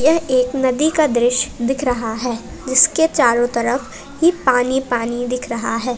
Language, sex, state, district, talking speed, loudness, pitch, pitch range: Hindi, female, Jharkhand, Palamu, 160 wpm, -17 LUFS, 255 Hz, 240-275 Hz